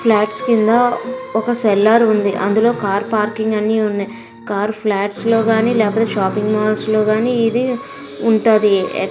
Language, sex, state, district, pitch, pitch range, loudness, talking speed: Telugu, female, Andhra Pradesh, Visakhapatnam, 215 Hz, 205-230 Hz, -16 LUFS, 125 wpm